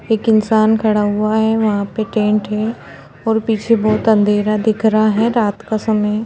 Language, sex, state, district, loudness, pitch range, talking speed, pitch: Hindi, female, Bihar, Gopalganj, -15 LUFS, 210-220 Hz, 190 wpm, 215 Hz